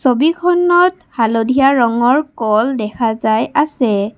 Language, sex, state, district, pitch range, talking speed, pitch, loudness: Assamese, female, Assam, Kamrup Metropolitan, 225-300 Hz, 100 wpm, 245 Hz, -14 LUFS